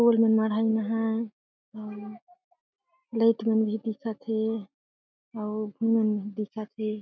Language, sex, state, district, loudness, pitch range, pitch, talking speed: Chhattisgarhi, female, Chhattisgarh, Jashpur, -27 LUFS, 215-230 Hz, 220 Hz, 110 wpm